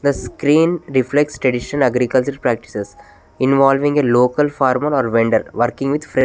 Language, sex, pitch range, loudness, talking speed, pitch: English, male, 120-145 Hz, -16 LUFS, 155 wpm, 130 Hz